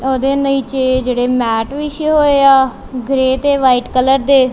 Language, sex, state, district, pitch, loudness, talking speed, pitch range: Punjabi, female, Punjab, Kapurthala, 265 Hz, -13 LUFS, 170 wpm, 255-275 Hz